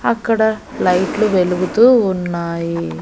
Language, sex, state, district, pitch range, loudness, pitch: Telugu, female, Andhra Pradesh, Annamaya, 175-220 Hz, -16 LUFS, 185 Hz